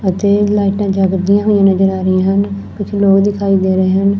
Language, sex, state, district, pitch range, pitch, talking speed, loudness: Punjabi, female, Punjab, Fazilka, 190-200 Hz, 195 Hz, 200 wpm, -13 LUFS